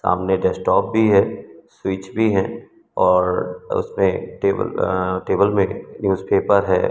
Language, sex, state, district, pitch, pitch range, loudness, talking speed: Hindi, male, Madhya Pradesh, Umaria, 95 Hz, 95-100 Hz, -19 LUFS, 130 wpm